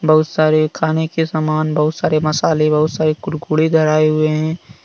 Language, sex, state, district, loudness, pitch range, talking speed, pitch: Hindi, male, Jharkhand, Deoghar, -16 LUFS, 155-160 Hz, 175 wpm, 155 Hz